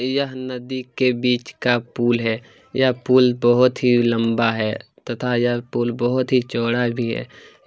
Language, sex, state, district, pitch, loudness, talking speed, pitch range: Hindi, male, Chhattisgarh, Kabirdham, 120 Hz, -20 LUFS, 165 wpm, 120-130 Hz